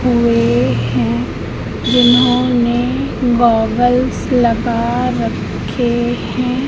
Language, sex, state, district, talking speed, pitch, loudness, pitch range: Hindi, female, Madhya Pradesh, Katni, 65 wpm, 240 Hz, -15 LUFS, 215-245 Hz